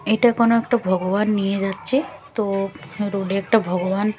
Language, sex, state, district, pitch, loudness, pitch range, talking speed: Bengali, female, Chhattisgarh, Raipur, 200 Hz, -21 LUFS, 195-225 Hz, 160 wpm